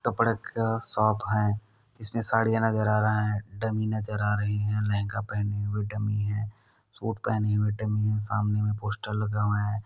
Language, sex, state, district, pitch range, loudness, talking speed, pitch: Hindi, male, Goa, North and South Goa, 105-110 Hz, -28 LUFS, 190 wpm, 105 Hz